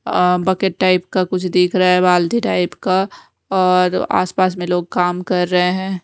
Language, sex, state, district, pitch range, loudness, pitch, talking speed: Hindi, female, Odisha, Nuapada, 180-185 Hz, -16 LUFS, 180 Hz, 190 wpm